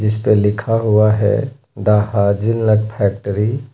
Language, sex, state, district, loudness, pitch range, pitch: Hindi, male, Uttar Pradesh, Lucknow, -16 LUFS, 105-115 Hz, 105 Hz